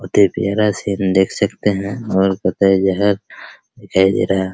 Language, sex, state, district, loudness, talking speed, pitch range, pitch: Hindi, male, Bihar, Araria, -16 LUFS, 185 wpm, 95-100 Hz, 95 Hz